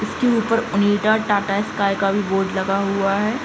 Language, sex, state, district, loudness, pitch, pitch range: Hindi, female, Bihar, East Champaran, -19 LUFS, 205 Hz, 195-215 Hz